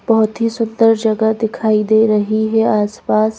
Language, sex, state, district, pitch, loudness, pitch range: Hindi, female, Madhya Pradesh, Bhopal, 220 Hz, -15 LUFS, 215-225 Hz